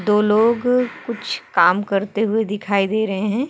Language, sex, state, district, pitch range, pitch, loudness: Hindi, female, Uttar Pradesh, Muzaffarnagar, 205-235 Hz, 215 Hz, -19 LUFS